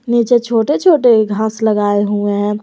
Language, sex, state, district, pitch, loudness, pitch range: Hindi, female, Jharkhand, Garhwa, 220 Hz, -13 LUFS, 205-240 Hz